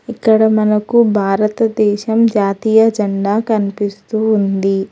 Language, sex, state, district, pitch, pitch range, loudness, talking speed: Telugu, female, Telangana, Hyderabad, 215 Hz, 200-220 Hz, -14 LUFS, 85 wpm